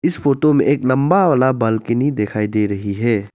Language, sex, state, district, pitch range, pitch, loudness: Hindi, male, Arunachal Pradesh, Lower Dibang Valley, 105-140 Hz, 130 Hz, -17 LUFS